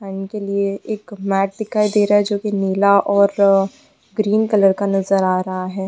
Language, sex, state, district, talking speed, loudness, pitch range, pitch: Hindi, female, West Bengal, Purulia, 205 wpm, -17 LUFS, 195-210 Hz, 200 Hz